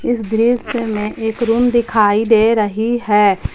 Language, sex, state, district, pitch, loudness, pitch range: Hindi, female, Jharkhand, Palamu, 225 Hz, -15 LUFS, 215-235 Hz